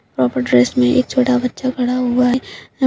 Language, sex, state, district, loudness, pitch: Hindi, female, Uttarakhand, Uttarkashi, -16 LUFS, 250 Hz